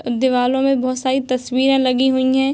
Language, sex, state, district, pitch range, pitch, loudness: Hindi, female, Bihar, Darbhanga, 255-265 Hz, 260 Hz, -17 LUFS